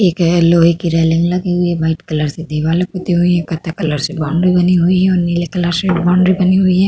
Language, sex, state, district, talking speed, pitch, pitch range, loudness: Hindi, female, Uttar Pradesh, Hamirpur, 260 wpm, 175 Hz, 165-180 Hz, -14 LUFS